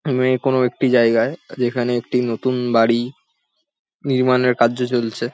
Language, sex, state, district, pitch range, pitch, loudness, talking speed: Bengali, male, West Bengal, Jhargram, 120-130 Hz, 125 Hz, -18 LUFS, 125 wpm